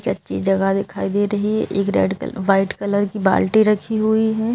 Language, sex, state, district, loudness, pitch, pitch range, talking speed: Hindi, male, Madhya Pradesh, Bhopal, -19 LUFS, 205 Hz, 195-220 Hz, 210 wpm